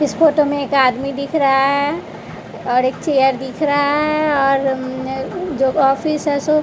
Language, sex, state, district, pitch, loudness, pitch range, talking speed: Hindi, female, Bihar, West Champaran, 280 Hz, -17 LUFS, 265-300 Hz, 180 wpm